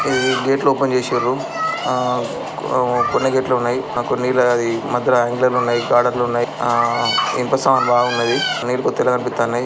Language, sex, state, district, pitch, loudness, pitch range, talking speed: Telugu, male, Andhra Pradesh, Srikakulam, 125 Hz, -18 LUFS, 120-130 Hz, 135 wpm